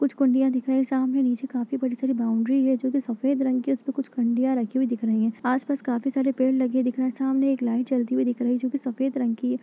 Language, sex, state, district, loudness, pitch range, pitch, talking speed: Hindi, female, Uttar Pradesh, Etah, -24 LUFS, 245-265 Hz, 260 Hz, 300 wpm